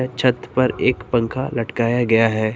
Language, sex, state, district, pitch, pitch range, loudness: Hindi, male, Uttar Pradesh, Lucknow, 120 Hz, 115-130 Hz, -19 LUFS